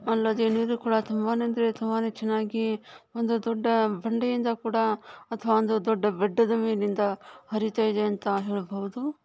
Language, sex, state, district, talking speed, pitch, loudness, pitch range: Kannada, female, Karnataka, Dharwad, 130 wpm, 225 Hz, -27 LUFS, 215-230 Hz